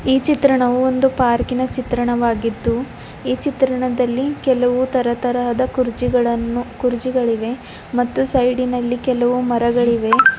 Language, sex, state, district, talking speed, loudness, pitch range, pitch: Kannada, female, Karnataka, Bidar, 100 wpm, -18 LUFS, 240-255 Hz, 250 Hz